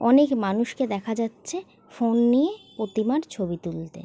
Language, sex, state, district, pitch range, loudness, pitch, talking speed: Bengali, female, West Bengal, Jalpaiguri, 200-265 Hz, -25 LUFS, 230 Hz, 135 wpm